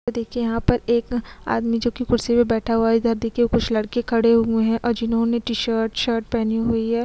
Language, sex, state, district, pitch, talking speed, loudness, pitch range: Hindi, female, Chhattisgarh, Korba, 230 Hz, 240 wpm, -21 LUFS, 230-235 Hz